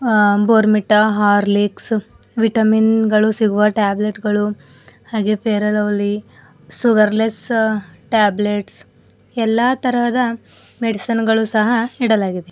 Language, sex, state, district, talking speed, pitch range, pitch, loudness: Kannada, female, Karnataka, Bidar, 100 wpm, 205-225 Hz, 215 Hz, -16 LUFS